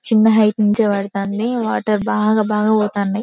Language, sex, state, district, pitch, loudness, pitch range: Telugu, female, Telangana, Karimnagar, 215 Hz, -17 LUFS, 205-220 Hz